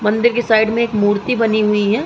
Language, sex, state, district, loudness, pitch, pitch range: Hindi, female, Uttar Pradesh, Muzaffarnagar, -15 LUFS, 220 Hz, 210-235 Hz